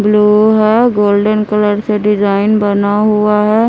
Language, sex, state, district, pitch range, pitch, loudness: Hindi, female, Bihar, Kaimur, 205-215 Hz, 210 Hz, -11 LUFS